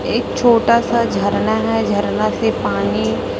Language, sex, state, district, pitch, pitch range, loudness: Hindi, female, Chhattisgarh, Raipur, 230 Hz, 225-235 Hz, -16 LUFS